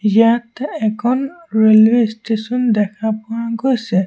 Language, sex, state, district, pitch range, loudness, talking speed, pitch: Assamese, male, Assam, Sonitpur, 220-240 Hz, -16 LUFS, 105 wpm, 225 Hz